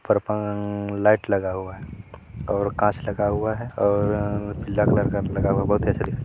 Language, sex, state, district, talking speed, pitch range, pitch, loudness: Hindi, male, Chhattisgarh, Balrampur, 165 wpm, 100-105 Hz, 105 Hz, -23 LUFS